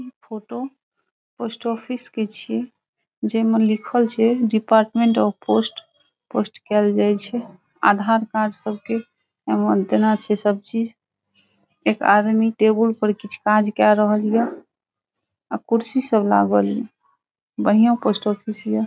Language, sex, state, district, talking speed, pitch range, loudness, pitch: Maithili, female, Bihar, Saharsa, 135 wpm, 205-230 Hz, -20 LUFS, 215 Hz